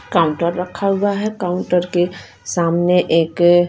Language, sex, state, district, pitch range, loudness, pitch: Hindi, female, Punjab, Fazilka, 170-180 Hz, -17 LUFS, 175 Hz